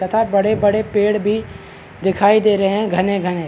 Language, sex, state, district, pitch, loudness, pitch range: Hindi, male, Bihar, Supaul, 205 Hz, -16 LUFS, 195-215 Hz